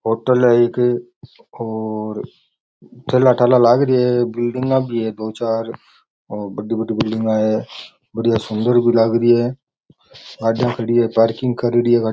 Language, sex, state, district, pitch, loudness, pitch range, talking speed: Rajasthani, male, Rajasthan, Nagaur, 120 Hz, -17 LUFS, 110-120 Hz, 165 wpm